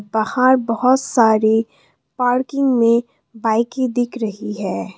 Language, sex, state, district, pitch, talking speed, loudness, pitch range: Hindi, female, Assam, Kamrup Metropolitan, 235 Hz, 110 wpm, -17 LUFS, 220-255 Hz